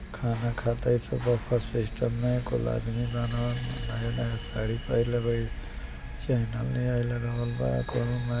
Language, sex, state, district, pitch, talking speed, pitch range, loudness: Bhojpuri, male, Uttar Pradesh, Ghazipur, 120 Hz, 130 wpm, 115-120 Hz, -29 LUFS